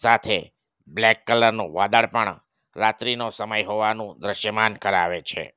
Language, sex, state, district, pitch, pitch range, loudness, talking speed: Gujarati, male, Gujarat, Valsad, 110 Hz, 105-115 Hz, -22 LUFS, 120 wpm